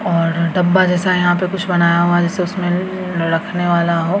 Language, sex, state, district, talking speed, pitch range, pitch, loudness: Hindi, female, Bihar, Samastipur, 200 wpm, 170-185 Hz, 175 Hz, -16 LUFS